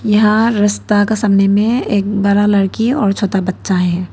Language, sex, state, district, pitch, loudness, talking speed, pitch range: Hindi, female, Arunachal Pradesh, Papum Pare, 205 Hz, -14 LUFS, 175 wpm, 195-215 Hz